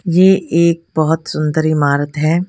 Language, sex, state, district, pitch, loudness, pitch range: Hindi, female, Punjab, Kapurthala, 160 Hz, -14 LUFS, 155-170 Hz